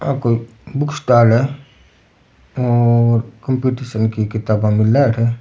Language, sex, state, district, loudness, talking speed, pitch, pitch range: Rajasthani, male, Rajasthan, Churu, -16 LUFS, 120 wpm, 115 Hz, 110-130 Hz